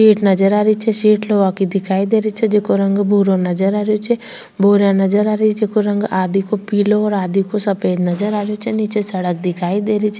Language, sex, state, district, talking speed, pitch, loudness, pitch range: Rajasthani, female, Rajasthan, Churu, 245 wpm, 205 Hz, -16 LUFS, 195-215 Hz